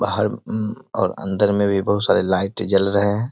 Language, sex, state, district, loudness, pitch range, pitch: Hindi, male, Bihar, East Champaran, -20 LUFS, 100-105 Hz, 100 Hz